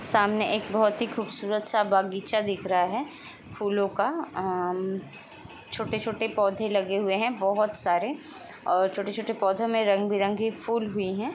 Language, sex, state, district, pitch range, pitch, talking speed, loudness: Hindi, female, Uttar Pradesh, Etah, 195-220 Hz, 205 Hz, 145 wpm, -27 LUFS